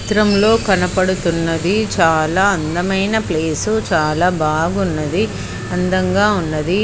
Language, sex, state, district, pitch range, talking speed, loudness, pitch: Telugu, male, Andhra Pradesh, Krishna, 165-200 Hz, 90 wpm, -16 LUFS, 180 Hz